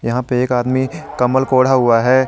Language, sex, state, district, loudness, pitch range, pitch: Hindi, male, Jharkhand, Garhwa, -15 LUFS, 125-130 Hz, 130 Hz